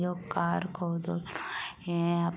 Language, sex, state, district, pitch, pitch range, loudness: Hindi, female, Uttar Pradesh, Muzaffarnagar, 170 Hz, 170-180 Hz, -32 LUFS